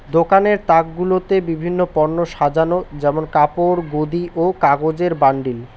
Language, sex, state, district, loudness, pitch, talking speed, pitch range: Bengali, male, West Bengal, Alipurduar, -17 LUFS, 165 Hz, 125 wpm, 150-180 Hz